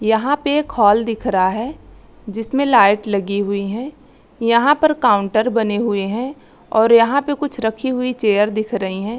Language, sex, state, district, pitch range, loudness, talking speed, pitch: Hindi, female, Chhattisgarh, Korba, 210-265 Hz, -17 LUFS, 185 wpm, 225 Hz